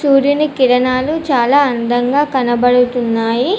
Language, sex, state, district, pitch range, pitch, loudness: Telugu, female, Telangana, Komaram Bheem, 245-285 Hz, 255 Hz, -13 LUFS